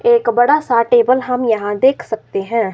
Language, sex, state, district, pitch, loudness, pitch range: Hindi, male, Himachal Pradesh, Shimla, 235 Hz, -15 LUFS, 225-250 Hz